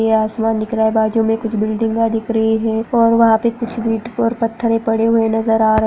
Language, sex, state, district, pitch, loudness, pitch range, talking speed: Hindi, female, Maharashtra, Aurangabad, 225 Hz, -16 LUFS, 220-230 Hz, 245 wpm